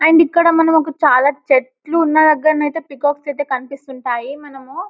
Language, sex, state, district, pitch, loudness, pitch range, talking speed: Telugu, female, Telangana, Karimnagar, 295 Hz, -15 LUFS, 275-320 Hz, 160 wpm